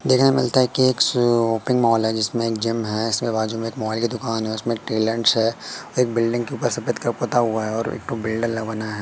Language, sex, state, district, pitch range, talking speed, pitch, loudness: Hindi, male, Madhya Pradesh, Katni, 110-120 Hz, 225 wpm, 115 Hz, -21 LUFS